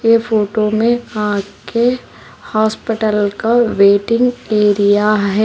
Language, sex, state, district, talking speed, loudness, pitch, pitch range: Hindi, female, Telangana, Hyderabad, 100 wpm, -15 LUFS, 215 Hz, 205-230 Hz